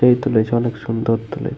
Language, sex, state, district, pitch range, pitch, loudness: Bengali, male, Jharkhand, Jamtara, 115-120 Hz, 115 Hz, -19 LUFS